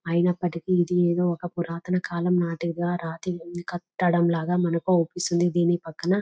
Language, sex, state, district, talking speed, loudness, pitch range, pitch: Telugu, female, Telangana, Nalgonda, 135 wpm, -25 LUFS, 170-180 Hz, 175 Hz